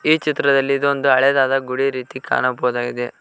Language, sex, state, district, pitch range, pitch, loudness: Kannada, male, Karnataka, Koppal, 125-140 Hz, 135 Hz, -18 LUFS